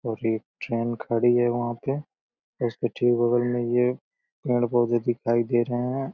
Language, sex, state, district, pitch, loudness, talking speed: Hindi, male, Uttar Pradesh, Deoria, 120 Hz, -25 LUFS, 175 wpm